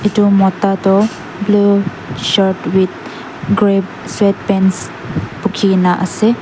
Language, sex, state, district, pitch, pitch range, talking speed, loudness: Nagamese, female, Nagaland, Dimapur, 195 Hz, 190-205 Hz, 110 wpm, -14 LUFS